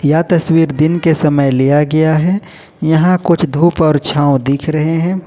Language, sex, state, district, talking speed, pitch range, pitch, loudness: Hindi, male, Jharkhand, Ranchi, 180 wpm, 150-170 Hz, 160 Hz, -12 LUFS